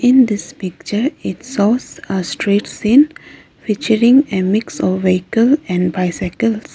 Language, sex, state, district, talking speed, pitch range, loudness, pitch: English, female, Arunachal Pradesh, Lower Dibang Valley, 135 wpm, 185-250 Hz, -16 LUFS, 210 Hz